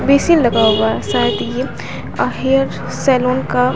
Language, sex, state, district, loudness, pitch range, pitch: Hindi, female, Bihar, Katihar, -15 LUFS, 220-270 Hz, 255 Hz